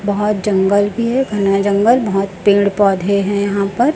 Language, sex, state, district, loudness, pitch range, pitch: Hindi, female, Chhattisgarh, Raipur, -15 LUFS, 200-210 Hz, 200 Hz